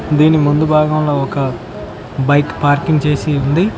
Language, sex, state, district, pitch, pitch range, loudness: Telugu, male, Telangana, Mahabubabad, 145 Hz, 140-155 Hz, -14 LUFS